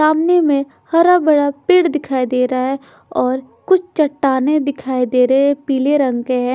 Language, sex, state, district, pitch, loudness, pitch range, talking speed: Hindi, female, Bihar, Patna, 280 Hz, -15 LUFS, 260-310 Hz, 185 wpm